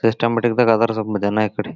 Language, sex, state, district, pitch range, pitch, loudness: Kannada, male, Karnataka, Gulbarga, 110-115 Hz, 115 Hz, -18 LUFS